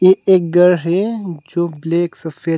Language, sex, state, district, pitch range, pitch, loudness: Hindi, male, Arunachal Pradesh, Longding, 165-185 Hz, 170 Hz, -16 LUFS